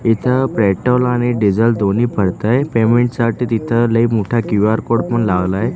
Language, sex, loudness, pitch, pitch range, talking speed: Marathi, male, -15 LUFS, 115 Hz, 110-120 Hz, 145 wpm